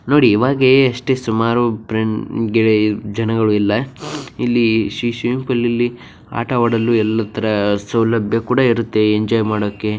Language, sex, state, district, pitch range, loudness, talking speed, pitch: Kannada, male, Karnataka, Bijapur, 110-120 Hz, -16 LUFS, 120 wpm, 115 Hz